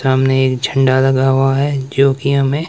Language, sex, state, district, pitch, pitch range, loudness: Hindi, male, Himachal Pradesh, Shimla, 135 Hz, 130-140 Hz, -14 LUFS